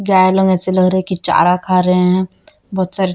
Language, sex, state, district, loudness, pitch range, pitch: Hindi, female, Chhattisgarh, Raipur, -14 LUFS, 180-185 Hz, 185 Hz